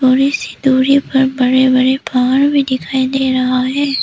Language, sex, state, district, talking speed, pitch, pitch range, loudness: Hindi, female, Arunachal Pradesh, Papum Pare, 180 wpm, 260 Hz, 255-270 Hz, -13 LUFS